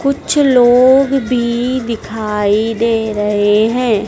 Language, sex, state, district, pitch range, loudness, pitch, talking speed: Hindi, female, Madhya Pradesh, Dhar, 215-255 Hz, -13 LUFS, 230 Hz, 105 wpm